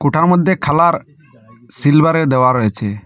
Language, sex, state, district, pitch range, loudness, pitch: Bengali, male, Assam, Hailakandi, 120-165 Hz, -13 LUFS, 145 Hz